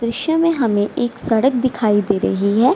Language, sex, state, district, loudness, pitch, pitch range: Hindi, female, Bihar, Gaya, -17 LUFS, 235 Hz, 205-255 Hz